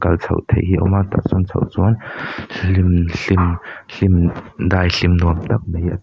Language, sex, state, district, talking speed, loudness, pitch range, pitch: Mizo, male, Mizoram, Aizawl, 190 wpm, -17 LUFS, 90-100 Hz, 90 Hz